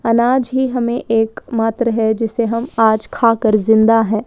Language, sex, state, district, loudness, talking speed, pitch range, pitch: Hindi, female, Chhattisgarh, Balrampur, -15 LUFS, 195 wpm, 220-240 Hz, 225 Hz